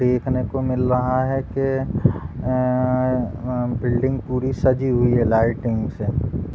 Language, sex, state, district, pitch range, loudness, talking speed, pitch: Hindi, male, Uttar Pradesh, Deoria, 120-130 Hz, -21 LUFS, 145 wpm, 125 Hz